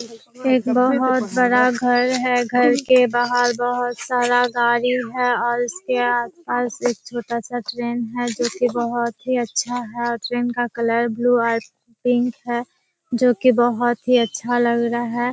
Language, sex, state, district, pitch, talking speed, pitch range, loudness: Hindi, female, Bihar, Kishanganj, 245 Hz, 155 wpm, 240-245 Hz, -20 LUFS